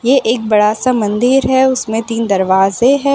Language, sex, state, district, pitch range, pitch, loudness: Hindi, female, Gujarat, Valsad, 210-260 Hz, 230 Hz, -13 LUFS